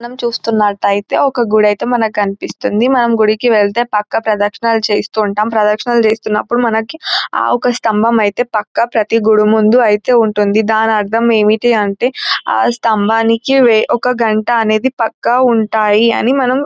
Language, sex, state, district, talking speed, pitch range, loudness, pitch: Telugu, female, Telangana, Nalgonda, 140 wpm, 215-240 Hz, -13 LUFS, 225 Hz